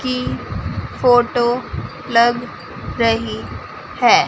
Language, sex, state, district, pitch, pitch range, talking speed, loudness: Hindi, female, Chandigarh, Chandigarh, 245 Hz, 235-250 Hz, 70 wpm, -18 LUFS